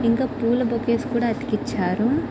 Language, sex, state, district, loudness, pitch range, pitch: Telugu, female, Andhra Pradesh, Visakhapatnam, -23 LUFS, 230-250 Hz, 235 Hz